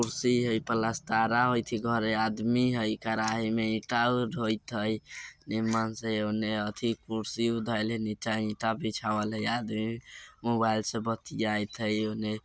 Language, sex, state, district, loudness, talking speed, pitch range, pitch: Bajjika, male, Bihar, Vaishali, -30 LUFS, 145 wpm, 110-115 Hz, 110 Hz